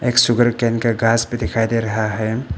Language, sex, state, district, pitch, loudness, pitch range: Hindi, male, Arunachal Pradesh, Papum Pare, 115 Hz, -18 LUFS, 110-120 Hz